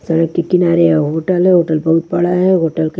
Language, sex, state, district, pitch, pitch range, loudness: Hindi, female, Maharashtra, Washim, 170 Hz, 160-180 Hz, -13 LUFS